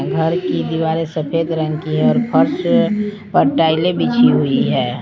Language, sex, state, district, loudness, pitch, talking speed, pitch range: Hindi, female, Jharkhand, Palamu, -16 LUFS, 165 Hz, 165 wpm, 160-205 Hz